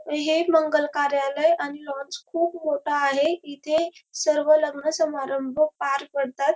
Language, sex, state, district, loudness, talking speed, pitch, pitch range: Marathi, female, Maharashtra, Dhule, -24 LUFS, 120 wpm, 300 Hz, 280-320 Hz